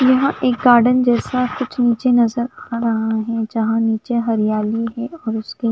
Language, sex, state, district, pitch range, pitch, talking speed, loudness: Hindi, female, Punjab, Fazilka, 225-250 Hz, 235 Hz, 155 wpm, -18 LUFS